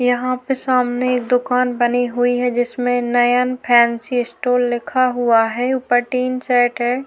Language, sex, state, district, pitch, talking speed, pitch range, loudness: Hindi, female, Chhattisgarh, Sukma, 245 Hz, 160 wpm, 245-250 Hz, -17 LUFS